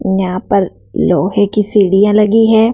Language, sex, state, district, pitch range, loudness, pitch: Hindi, female, Madhya Pradesh, Dhar, 190-210 Hz, -12 LUFS, 205 Hz